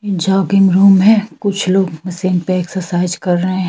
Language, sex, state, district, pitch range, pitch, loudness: Hindi, female, Chhattisgarh, Sukma, 180-195 Hz, 185 Hz, -14 LUFS